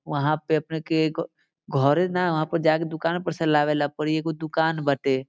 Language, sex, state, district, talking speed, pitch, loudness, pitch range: Bhojpuri, male, Bihar, Saran, 205 wpm, 160 Hz, -24 LUFS, 150-165 Hz